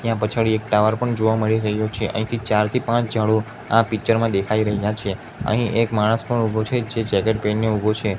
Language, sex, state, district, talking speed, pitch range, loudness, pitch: Gujarati, male, Gujarat, Gandhinagar, 225 wpm, 105-115 Hz, -20 LUFS, 110 Hz